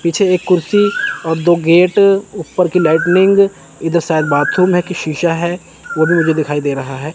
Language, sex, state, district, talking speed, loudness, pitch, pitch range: Hindi, male, Chandigarh, Chandigarh, 195 wpm, -13 LUFS, 170 Hz, 160-185 Hz